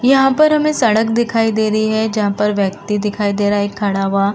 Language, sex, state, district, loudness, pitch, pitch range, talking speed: Hindi, female, Uttar Pradesh, Varanasi, -15 LUFS, 215 Hz, 205-230 Hz, 235 wpm